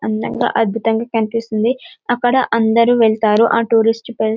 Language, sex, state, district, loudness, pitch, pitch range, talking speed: Telugu, female, Telangana, Karimnagar, -16 LUFS, 230 Hz, 220-235 Hz, 150 wpm